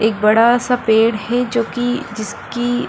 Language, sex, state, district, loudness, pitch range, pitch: Hindi, female, Bihar, Kishanganj, -16 LUFS, 220-245 Hz, 235 Hz